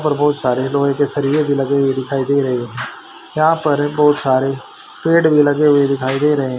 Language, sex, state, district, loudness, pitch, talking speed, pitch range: Hindi, male, Haryana, Rohtak, -16 LUFS, 140 Hz, 230 wpm, 135-150 Hz